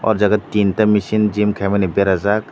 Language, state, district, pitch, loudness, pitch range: Kokborok, Tripura, Dhalai, 105 Hz, -16 LUFS, 100-105 Hz